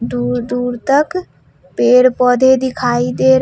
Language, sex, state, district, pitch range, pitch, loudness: Hindi, female, Bihar, Katihar, 245-260 Hz, 250 Hz, -14 LUFS